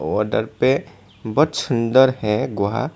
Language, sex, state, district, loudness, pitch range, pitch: Hindi, male, Tripura, Dhalai, -19 LUFS, 105-130 Hz, 115 Hz